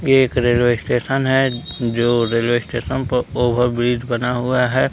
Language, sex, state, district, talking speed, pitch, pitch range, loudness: Hindi, male, Bihar, Kaimur, 170 wpm, 120 Hz, 120-130 Hz, -18 LUFS